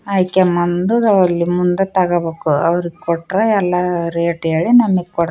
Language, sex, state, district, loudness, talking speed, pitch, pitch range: Kannada, female, Karnataka, Raichur, -15 LUFS, 125 wpm, 180 Hz, 170-190 Hz